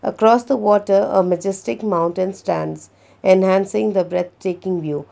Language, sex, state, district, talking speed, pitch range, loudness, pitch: English, female, Karnataka, Bangalore, 140 wpm, 170-195 Hz, -18 LUFS, 185 Hz